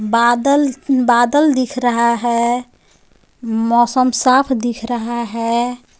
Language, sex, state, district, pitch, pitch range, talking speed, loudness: Hindi, female, Jharkhand, Garhwa, 240 Hz, 235-255 Hz, 100 wpm, -16 LUFS